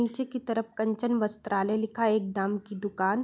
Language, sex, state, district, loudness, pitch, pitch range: Hindi, female, Uttar Pradesh, Deoria, -29 LUFS, 220 Hz, 200-230 Hz